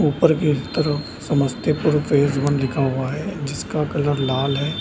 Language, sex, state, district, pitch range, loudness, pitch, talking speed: Hindi, male, Bihar, Samastipur, 140-150 Hz, -21 LUFS, 145 Hz, 160 wpm